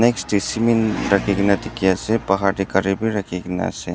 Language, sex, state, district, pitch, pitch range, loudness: Nagamese, male, Nagaland, Dimapur, 100 Hz, 95-110 Hz, -20 LUFS